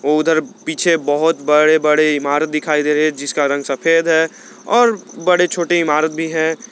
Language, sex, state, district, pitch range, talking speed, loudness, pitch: Hindi, male, Jharkhand, Garhwa, 150-165 Hz, 190 wpm, -15 LUFS, 155 Hz